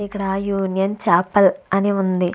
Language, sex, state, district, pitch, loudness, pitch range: Telugu, female, Andhra Pradesh, Visakhapatnam, 195 Hz, -19 LUFS, 190-205 Hz